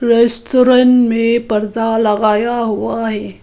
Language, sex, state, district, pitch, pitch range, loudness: Hindi, female, Arunachal Pradesh, Lower Dibang Valley, 230 Hz, 215-235 Hz, -13 LUFS